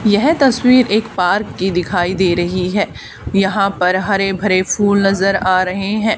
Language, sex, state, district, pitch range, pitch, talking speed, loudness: Hindi, female, Haryana, Charkhi Dadri, 185-210 Hz, 195 Hz, 175 wpm, -15 LUFS